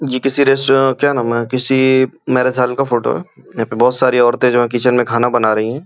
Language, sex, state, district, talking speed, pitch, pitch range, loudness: Hindi, male, Uttar Pradesh, Gorakhpur, 255 wpm, 125 Hz, 120-135 Hz, -14 LUFS